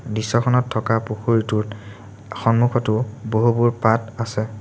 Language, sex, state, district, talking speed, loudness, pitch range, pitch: Assamese, male, Assam, Sonitpur, 105 wpm, -20 LUFS, 110-120 Hz, 110 Hz